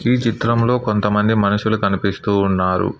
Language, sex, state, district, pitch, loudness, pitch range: Telugu, male, Telangana, Hyderabad, 105 Hz, -17 LUFS, 100-115 Hz